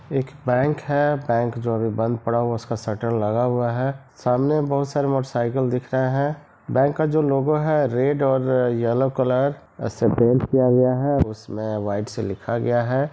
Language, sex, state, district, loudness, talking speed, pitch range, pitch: Hindi, male, Bihar, East Champaran, -22 LUFS, 195 wpm, 115-140 Hz, 125 Hz